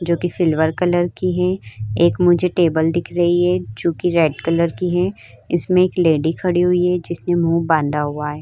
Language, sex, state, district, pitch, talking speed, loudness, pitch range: Hindi, female, Uttar Pradesh, Hamirpur, 170 Hz, 205 wpm, -18 LUFS, 160-180 Hz